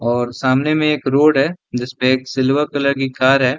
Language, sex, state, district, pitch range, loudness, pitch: Hindi, male, Bihar, Sitamarhi, 130-145 Hz, -16 LUFS, 135 Hz